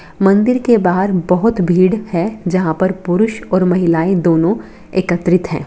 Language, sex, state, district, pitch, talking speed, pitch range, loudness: Hindi, female, Bihar, Darbhanga, 185 Hz, 150 wpm, 175-200 Hz, -14 LUFS